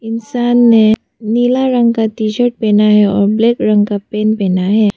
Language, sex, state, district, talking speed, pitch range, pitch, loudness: Hindi, female, Arunachal Pradesh, Papum Pare, 195 wpm, 210-235 Hz, 220 Hz, -12 LUFS